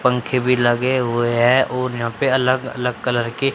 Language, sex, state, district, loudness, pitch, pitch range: Hindi, male, Haryana, Charkhi Dadri, -18 LUFS, 125 Hz, 120-130 Hz